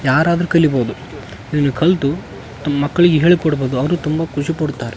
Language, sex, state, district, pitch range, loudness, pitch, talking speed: Kannada, male, Karnataka, Raichur, 135-165 Hz, -16 LUFS, 150 Hz, 120 wpm